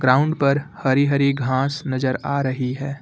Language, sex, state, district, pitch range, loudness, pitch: Hindi, male, Uttar Pradesh, Lucknow, 130-140 Hz, -21 LUFS, 140 Hz